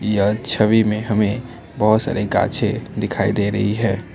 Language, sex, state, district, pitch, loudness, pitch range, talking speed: Hindi, male, Assam, Kamrup Metropolitan, 105 Hz, -19 LUFS, 100-110 Hz, 160 wpm